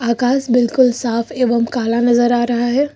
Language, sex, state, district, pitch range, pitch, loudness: Hindi, female, Uttar Pradesh, Lucknow, 235-250 Hz, 240 Hz, -15 LUFS